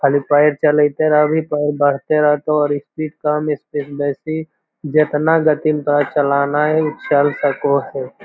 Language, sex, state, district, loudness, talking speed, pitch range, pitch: Magahi, male, Bihar, Lakhisarai, -16 LUFS, 175 wpm, 145-155 Hz, 150 Hz